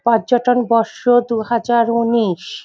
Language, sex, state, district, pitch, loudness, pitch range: Bengali, female, West Bengal, Jhargram, 235 Hz, -16 LUFS, 225-240 Hz